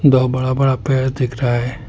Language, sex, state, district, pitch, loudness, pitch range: Hindi, male, Assam, Hailakandi, 130 Hz, -17 LUFS, 125-135 Hz